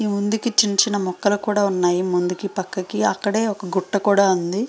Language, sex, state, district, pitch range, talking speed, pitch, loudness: Telugu, female, Andhra Pradesh, Srikakulam, 185-205 Hz, 180 wpm, 200 Hz, -20 LUFS